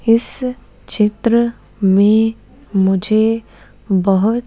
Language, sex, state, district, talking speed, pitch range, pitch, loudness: Hindi, female, Madhya Pradesh, Bhopal, 65 wpm, 195-230 Hz, 215 Hz, -16 LUFS